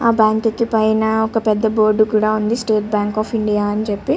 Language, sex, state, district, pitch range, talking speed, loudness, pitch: Telugu, female, Andhra Pradesh, Chittoor, 215-220 Hz, 200 wpm, -17 LUFS, 215 Hz